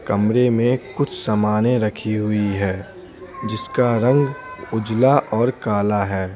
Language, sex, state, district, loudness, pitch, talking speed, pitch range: Hindi, male, Bihar, Patna, -19 LUFS, 110 Hz, 125 wpm, 105-125 Hz